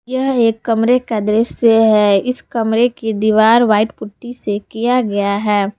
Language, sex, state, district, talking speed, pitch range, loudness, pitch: Hindi, female, Jharkhand, Palamu, 165 wpm, 210-240 Hz, -14 LUFS, 225 Hz